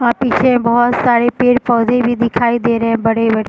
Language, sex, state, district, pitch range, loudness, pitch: Hindi, female, Bihar, East Champaran, 230-245 Hz, -13 LUFS, 235 Hz